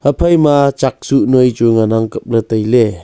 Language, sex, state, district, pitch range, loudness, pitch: Wancho, male, Arunachal Pradesh, Longding, 110-140 Hz, -12 LUFS, 120 Hz